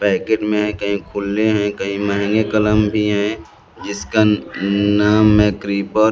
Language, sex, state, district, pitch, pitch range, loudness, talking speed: Hindi, male, Bihar, Kaimur, 105 Hz, 100-105 Hz, -17 LUFS, 155 wpm